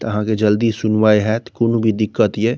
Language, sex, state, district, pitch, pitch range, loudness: Maithili, male, Bihar, Saharsa, 110 Hz, 105-115 Hz, -17 LUFS